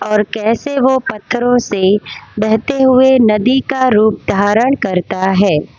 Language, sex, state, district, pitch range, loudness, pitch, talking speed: Hindi, female, Gujarat, Valsad, 205-260 Hz, -13 LUFS, 220 Hz, 135 wpm